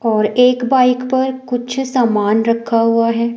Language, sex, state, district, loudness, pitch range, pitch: Hindi, female, Himachal Pradesh, Shimla, -15 LUFS, 230-255 Hz, 245 Hz